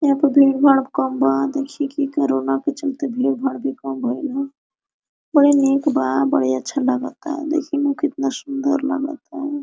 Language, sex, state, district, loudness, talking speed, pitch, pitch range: Hindi, female, Jharkhand, Sahebganj, -19 LUFS, 185 wpm, 280 Hz, 250-290 Hz